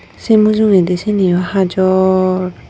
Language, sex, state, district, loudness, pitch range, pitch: Chakma, female, Tripura, Unakoti, -13 LUFS, 185-205 Hz, 190 Hz